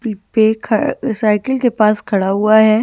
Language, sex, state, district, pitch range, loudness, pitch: Hindi, female, Himachal Pradesh, Shimla, 210-235 Hz, -15 LUFS, 220 Hz